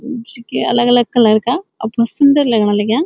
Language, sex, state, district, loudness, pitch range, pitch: Garhwali, female, Uttarakhand, Uttarkashi, -14 LUFS, 225-270 Hz, 240 Hz